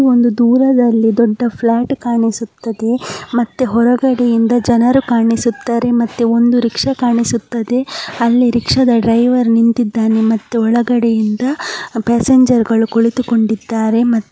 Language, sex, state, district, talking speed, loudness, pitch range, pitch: Kannada, male, Karnataka, Mysore, 105 wpm, -13 LUFS, 230-245 Hz, 235 Hz